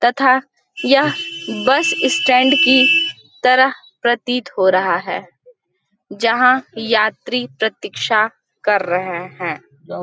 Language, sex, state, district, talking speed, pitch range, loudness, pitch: Hindi, female, Chhattisgarh, Balrampur, 95 wpm, 215-270 Hz, -16 LUFS, 250 Hz